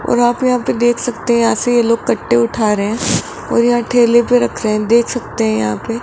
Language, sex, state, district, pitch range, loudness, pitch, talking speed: Hindi, male, Rajasthan, Jaipur, 215-240 Hz, -14 LUFS, 235 Hz, 260 wpm